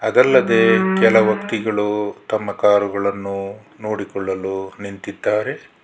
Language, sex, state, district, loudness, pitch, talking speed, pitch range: Kannada, male, Karnataka, Bangalore, -18 LUFS, 100 Hz, 70 wpm, 100-110 Hz